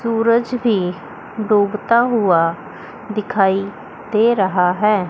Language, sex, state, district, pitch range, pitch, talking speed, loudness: Hindi, female, Chandigarh, Chandigarh, 190-230 Hz, 210 Hz, 95 wpm, -17 LUFS